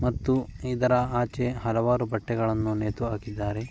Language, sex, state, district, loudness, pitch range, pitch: Kannada, male, Karnataka, Mysore, -27 LUFS, 110-125 Hz, 115 Hz